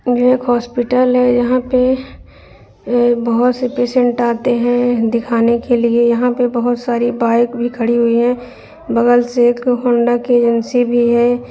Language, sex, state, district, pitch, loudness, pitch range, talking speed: Hindi, female, Bihar, Jahanabad, 245 Hz, -14 LUFS, 235-245 Hz, 160 wpm